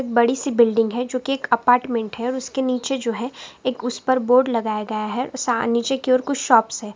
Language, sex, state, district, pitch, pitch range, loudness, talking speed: Hindi, female, Karnataka, Raichur, 245 Hz, 230-255 Hz, -21 LUFS, 240 wpm